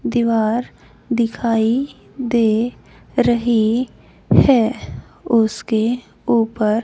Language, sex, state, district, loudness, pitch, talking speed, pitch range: Hindi, female, Haryana, Charkhi Dadri, -18 LUFS, 230 Hz, 60 wpm, 225-240 Hz